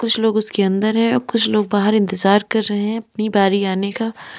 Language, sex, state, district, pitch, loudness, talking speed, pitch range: Hindi, female, Uttar Pradesh, Lalitpur, 215 Hz, -17 LUFS, 220 wpm, 200-225 Hz